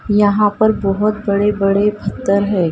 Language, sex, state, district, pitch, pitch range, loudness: Hindi, female, Maharashtra, Gondia, 205 Hz, 200-210 Hz, -15 LUFS